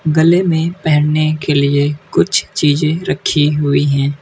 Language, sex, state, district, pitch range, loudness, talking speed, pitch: Hindi, female, West Bengal, Alipurduar, 145-160 Hz, -14 LUFS, 140 wpm, 150 Hz